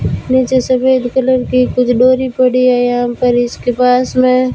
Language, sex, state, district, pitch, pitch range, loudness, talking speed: Hindi, female, Rajasthan, Bikaner, 255 Hz, 250-255 Hz, -12 LUFS, 170 wpm